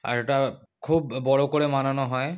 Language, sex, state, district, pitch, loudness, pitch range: Bengali, male, West Bengal, North 24 Parganas, 135 Hz, -24 LUFS, 130-150 Hz